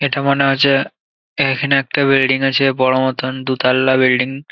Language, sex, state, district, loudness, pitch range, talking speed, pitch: Bengali, male, West Bengal, Jalpaiguri, -15 LUFS, 130-140 Hz, 170 wpm, 135 Hz